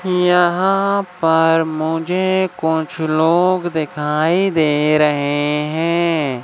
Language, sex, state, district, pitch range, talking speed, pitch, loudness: Hindi, male, Madhya Pradesh, Katni, 155-180 Hz, 85 wpm, 165 Hz, -16 LUFS